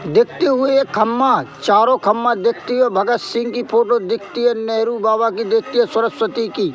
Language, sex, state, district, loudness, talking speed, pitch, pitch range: Hindi, male, Madhya Pradesh, Katni, -17 LUFS, 185 wpm, 240 Hz, 225-260 Hz